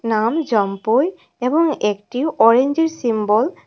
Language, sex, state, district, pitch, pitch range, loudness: Bengali, female, Tripura, West Tripura, 240 Hz, 215-310 Hz, -18 LUFS